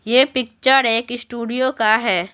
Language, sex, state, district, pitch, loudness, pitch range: Hindi, female, Bihar, Patna, 240 Hz, -17 LUFS, 225-260 Hz